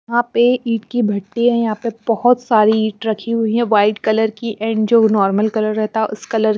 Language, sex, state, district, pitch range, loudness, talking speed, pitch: Hindi, female, Punjab, Pathankot, 215-235 Hz, -16 LUFS, 235 wpm, 220 Hz